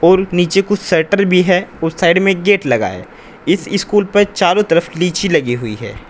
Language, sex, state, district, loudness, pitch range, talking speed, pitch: Hindi, male, Uttar Pradesh, Saharanpur, -14 LUFS, 165-195 Hz, 215 wpm, 180 Hz